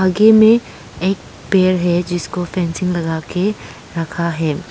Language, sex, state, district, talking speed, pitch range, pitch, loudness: Hindi, female, Arunachal Pradesh, Lower Dibang Valley, 140 wpm, 170-190 Hz, 180 Hz, -16 LUFS